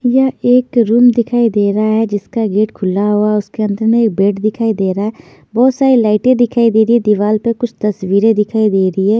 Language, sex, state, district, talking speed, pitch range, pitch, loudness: Hindi, female, Chandigarh, Chandigarh, 230 wpm, 210-235 Hz, 220 Hz, -13 LUFS